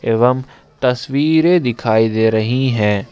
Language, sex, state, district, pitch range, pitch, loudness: Hindi, male, Jharkhand, Ranchi, 110-135 Hz, 125 Hz, -15 LUFS